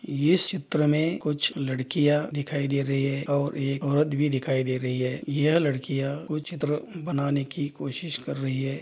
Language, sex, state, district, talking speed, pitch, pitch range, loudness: Hindi, male, Bihar, Darbhanga, 185 wpm, 145 Hz, 135-150 Hz, -26 LUFS